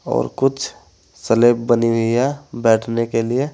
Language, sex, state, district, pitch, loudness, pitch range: Hindi, male, Uttar Pradesh, Saharanpur, 115 Hz, -18 LUFS, 115-130 Hz